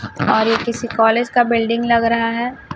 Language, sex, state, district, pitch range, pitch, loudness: Hindi, female, Chhattisgarh, Raipur, 225-235 Hz, 230 Hz, -17 LUFS